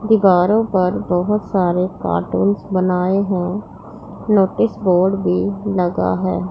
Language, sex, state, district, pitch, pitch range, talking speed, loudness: Hindi, female, Punjab, Pathankot, 185 Hz, 180-200 Hz, 110 wpm, -17 LUFS